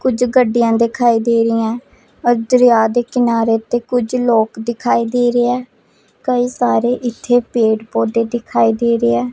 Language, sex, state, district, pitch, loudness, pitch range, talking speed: Punjabi, female, Punjab, Pathankot, 235 Hz, -15 LUFS, 225-245 Hz, 155 wpm